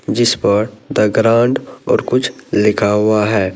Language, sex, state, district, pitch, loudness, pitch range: Hindi, male, Uttar Pradesh, Lalitpur, 105 Hz, -15 LUFS, 105-115 Hz